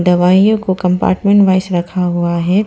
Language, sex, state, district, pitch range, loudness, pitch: Hindi, female, Arunachal Pradesh, Papum Pare, 175-190 Hz, -13 LUFS, 185 Hz